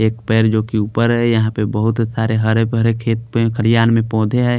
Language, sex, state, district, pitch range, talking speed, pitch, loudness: Hindi, male, Haryana, Charkhi Dadri, 110-115 Hz, 235 wpm, 115 Hz, -16 LUFS